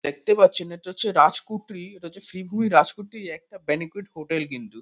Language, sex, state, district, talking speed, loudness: Bengali, male, West Bengal, Kolkata, 160 wpm, -19 LUFS